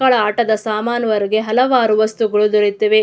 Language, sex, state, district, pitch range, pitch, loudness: Kannada, female, Karnataka, Mysore, 215-235 Hz, 215 Hz, -16 LUFS